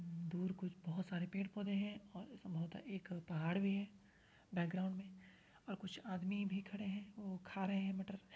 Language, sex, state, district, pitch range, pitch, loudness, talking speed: Hindi, female, Uttar Pradesh, Varanasi, 180-200 Hz, 190 Hz, -44 LUFS, 200 wpm